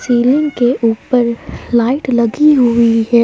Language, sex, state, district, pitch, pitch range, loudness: Hindi, female, Jharkhand, Palamu, 240 Hz, 235-260 Hz, -13 LUFS